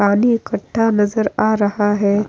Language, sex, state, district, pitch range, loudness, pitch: Hindi, female, Bihar, Kishanganj, 205-220 Hz, -17 LUFS, 210 Hz